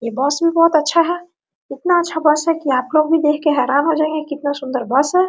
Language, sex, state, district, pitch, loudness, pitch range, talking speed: Hindi, female, Jharkhand, Sahebganj, 310 Hz, -16 LUFS, 285-335 Hz, 260 wpm